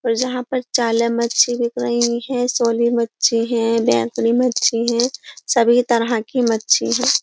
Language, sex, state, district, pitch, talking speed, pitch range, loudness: Hindi, female, Uttar Pradesh, Jyotiba Phule Nagar, 235 Hz, 160 wpm, 230-245 Hz, -18 LUFS